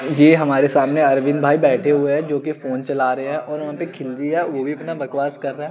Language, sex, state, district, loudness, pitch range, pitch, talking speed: Hindi, male, Chandigarh, Chandigarh, -19 LUFS, 140-150 Hz, 145 Hz, 260 wpm